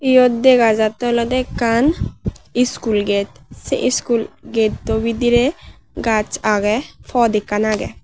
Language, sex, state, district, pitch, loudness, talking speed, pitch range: Chakma, female, Tripura, Unakoti, 230 Hz, -17 LUFS, 120 wpm, 215-245 Hz